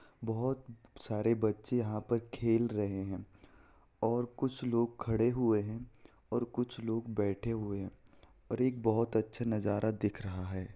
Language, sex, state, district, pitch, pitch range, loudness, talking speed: Hindi, male, Bihar, Jahanabad, 115 Hz, 105-120 Hz, -35 LUFS, 155 wpm